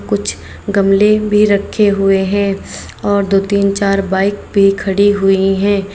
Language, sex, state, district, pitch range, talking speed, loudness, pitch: Hindi, female, Uttar Pradesh, Saharanpur, 195-205 Hz, 150 wpm, -13 LUFS, 200 Hz